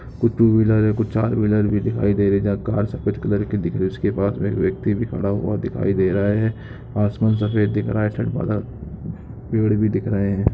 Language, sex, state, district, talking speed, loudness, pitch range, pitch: Hindi, male, Goa, North and South Goa, 240 wpm, -20 LUFS, 100-110 Hz, 105 Hz